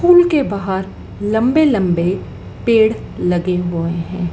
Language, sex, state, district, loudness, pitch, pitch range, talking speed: Hindi, female, Madhya Pradesh, Dhar, -16 LUFS, 190 Hz, 175-235 Hz, 110 wpm